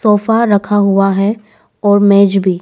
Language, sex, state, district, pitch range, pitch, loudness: Hindi, female, Arunachal Pradesh, Lower Dibang Valley, 195-210 Hz, 205 Hz, -11 LUFS